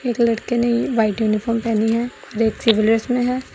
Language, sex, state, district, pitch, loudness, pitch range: Hindi, female, Assam, Sonitpur, 230 Hz, -19 LUFS, 225-240 Hz